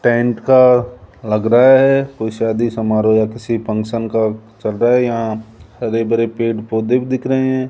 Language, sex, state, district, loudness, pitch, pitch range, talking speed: Hindi, male, Rajasthan, Jaipur, -15 LUFS, 115 Hz, 110-125 Hz, 180 wpm